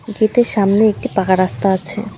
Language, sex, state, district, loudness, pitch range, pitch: Bengali, female, West Bengal, Alipurduar, -15 LUFS, 195-220 Hz, 210 Hz